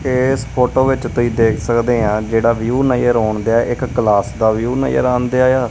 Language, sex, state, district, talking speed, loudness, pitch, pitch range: Punjabi, male, Punjab, Kapurthala, 190 wpm, -15 LUFS, 120 Hz, 115-125 Hz